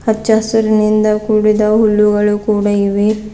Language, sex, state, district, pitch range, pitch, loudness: Kannada, female, Karnataka, Bidar, 210-215 Hz, 215 Hz, -13 LUFS